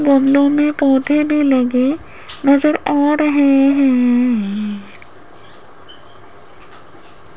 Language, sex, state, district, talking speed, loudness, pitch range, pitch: Hindi, female, Rajasthan, Jaipur, 75 wpm, -14 LUFS, 255-290 Hz, 275 Hz